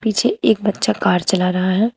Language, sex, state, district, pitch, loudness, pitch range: Hindi, female, Uttar Pradesh, Shamli, 200 Hz, -17 LUFS, 180-220 Hz